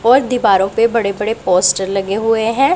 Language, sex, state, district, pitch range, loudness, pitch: Hindi, female, Punjab, Pathankot, 195-230 Hz, -14 LUFS, 220 Hz